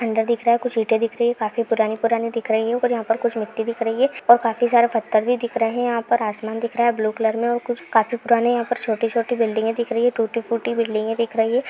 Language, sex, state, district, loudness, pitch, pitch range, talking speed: Hindi, female, Uttarakhand, Tehri Garhwal, -21 LUFS, 230 Hz, 225-240 Hz, 280 wpm